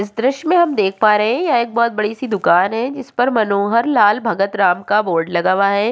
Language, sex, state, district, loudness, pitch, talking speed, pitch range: Hindi, female, Uttarakhand, Tehri Garhwal, -16 LUFS, 215 Hz, 265 wpm, 200-240 Hz